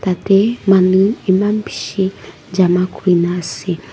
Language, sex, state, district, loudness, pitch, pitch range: Nagamese, female, Nagaland, Dimapur, -15 LUFS, 185 Hz, 180-195 Hz